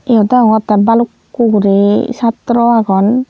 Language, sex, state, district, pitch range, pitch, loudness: Chakma, female, Tripura, Unakoti, 210-240 Hz, 230 Hz, -11 LUFS